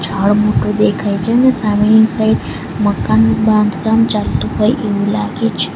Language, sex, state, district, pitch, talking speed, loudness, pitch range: Gujarati, female, Gujarat, Valsad, 210 Hz, 145 wpm, -14 LUFS, 200-220 Hz